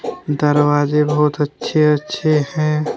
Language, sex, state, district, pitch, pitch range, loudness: Hindi, male, Jharkhand, Deoghar, 150 Hz, 145-155 Hz, -17 LUFS